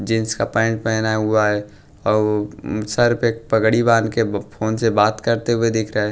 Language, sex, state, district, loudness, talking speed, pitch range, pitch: Hindi, male, Bihar, West Champaran, -19 LUFS, 205 wpm, 105-115 Hz, 110 Hz